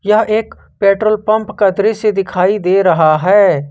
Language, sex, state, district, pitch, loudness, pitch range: Hindi, male, Jharkhand, Ranchi, 200 Hz, -13 LUFS, 190-215 Hz